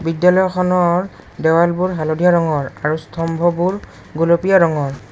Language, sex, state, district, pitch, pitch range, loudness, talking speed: Assamese, male, Assam, Kamrup Metropolitan, 170 Hz, 160-180 Hz, -16 LUFS, 95 wpm